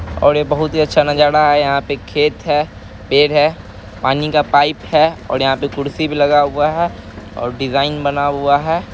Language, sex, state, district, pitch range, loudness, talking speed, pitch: Hindi, male, Bihar, Araria, 135-150 Hz, -15 LUFS, 210 wpm, 145 Hz